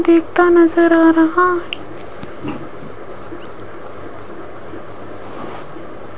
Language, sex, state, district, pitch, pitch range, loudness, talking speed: Hindi, female, Rajasthan, Jaipur, 335 Hz, 330-350 Hz, -13 LUFS, 50 wpm